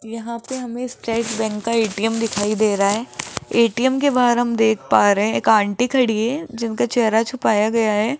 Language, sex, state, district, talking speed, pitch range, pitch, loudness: Hindi, female, Rajasthan, Jaipur, 205 wpm, 220-240 Hz, 230 Hz, -19 LUFS